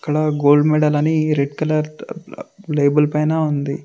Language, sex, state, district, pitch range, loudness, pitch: Telugu, male, Telangana, Mahabubabad, 150-155 Hz, -17 LUFS, 150 Hz